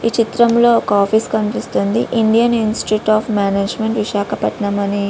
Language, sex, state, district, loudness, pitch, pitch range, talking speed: Telugu, female, Andhra Pradesh, Visakhapatnam, -16 LUFS, 215 Hz, 205-230 Hz, 140 wpm